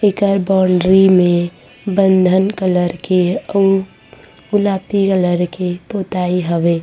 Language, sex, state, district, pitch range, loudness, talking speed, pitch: Chhattisgarhi, female, Chhattisgarh, Rajnandgaon, 180-195 Hz, -15 LUFS, 105 wpm, 185 Hz